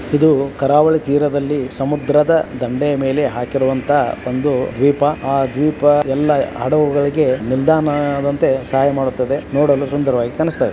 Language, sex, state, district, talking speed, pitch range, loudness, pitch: Kannada, male, Karnataka, Belgaum, 105 wpm, 135-145 Hz, -16 LUFS, 140 Hz